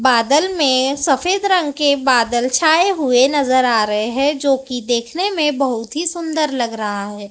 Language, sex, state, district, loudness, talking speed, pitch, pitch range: Hindi, male, Maharashtra, Gondia, -16 LUFS, 180 wpm, 270 Hz, 240-310 Hz